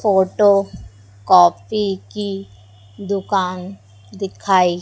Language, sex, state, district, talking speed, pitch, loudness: Hindi, female, Madhya Pradesh, Dhar, 60 wpm, 185 Hz, -17 LUFS